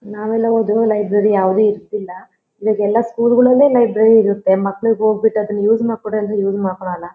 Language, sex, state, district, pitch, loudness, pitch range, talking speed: Kannada, female, Karnataka, Shimoga, 215 Hz, -15 LUFS, 200-225 Hz, 150 wpm